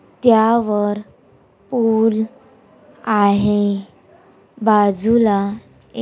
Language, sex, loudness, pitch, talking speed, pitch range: Marathi, female, -17 LUFS, 215 Hz, 50 wpm, 205-225 Hz